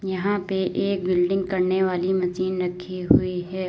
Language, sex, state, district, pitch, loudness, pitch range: Hindi, female, Uttar Pradesh, Lalitpur, 185 Hz, -23 LUFS, 180-190 Hz